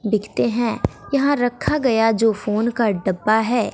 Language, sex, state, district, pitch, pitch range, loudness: Hindi, female, Bihar, West Champaran, 225 Hz, 215-240 Hz, -19 LUFS